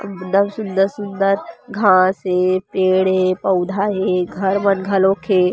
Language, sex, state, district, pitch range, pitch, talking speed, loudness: Chhattisgarhi, female, Chhattisgarh, Rajnandgaon, 185-200 Hz, 190 Hz, 130 wpm, -17 LUFS